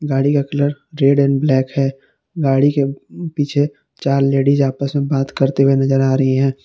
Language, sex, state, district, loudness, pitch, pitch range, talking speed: Hindi, male, Jharkhand, Palamu, -16 LUFS, 140 Hz, 135-145 Hz, 190 wpm